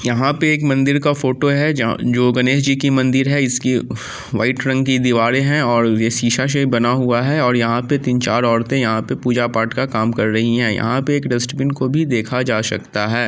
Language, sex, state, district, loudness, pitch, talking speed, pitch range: Angika, male, Bihar, Samastipur, -17 LUFS, 125 Hz, 235 wpm, 120-135 Hz